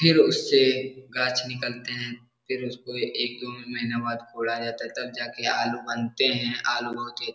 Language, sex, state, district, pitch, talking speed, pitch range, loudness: Hindi, male, Bihar, Jahanabad, 120 Hz, 180 wpm, 120-130 Hz, -26 LUFS